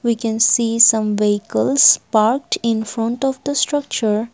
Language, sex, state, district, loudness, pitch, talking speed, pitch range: English, female, Assam, Kamrup Metropolitan, -16 LUFS, 230 Hz, 150 wpm, 220-265 Hz